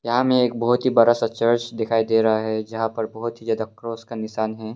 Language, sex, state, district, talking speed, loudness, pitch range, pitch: Hindi, male, Arunachal Pradesh, Longding, 265 wpm, -21 LUFS, 110-115 Hz, 115 Hz